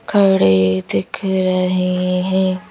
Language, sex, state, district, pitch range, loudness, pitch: Hindi, female, Madhya Pradesh, Bhopal, 160-190 Hz, -16 LUFS, 185 Hz